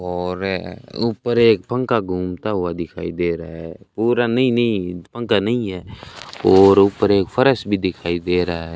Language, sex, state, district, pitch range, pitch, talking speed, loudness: Hindi, male, Rajasthan, Bikaner, 90-115 Hz, 95 Hz, 170 wpm, -18 LUFS